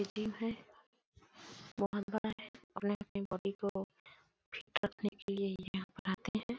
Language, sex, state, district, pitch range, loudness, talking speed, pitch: Hindi, female, Chhattisgarh, Bilaspur, 195-215 Hz, -40 LUFS, 155 wpm, 205 Hz